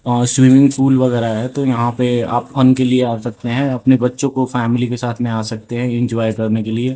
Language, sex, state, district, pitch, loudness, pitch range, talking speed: Hindi, male, Rajasthan, Jaipur, 125 Hz, -15 LUFS, 120-130 Hz, 240 wpm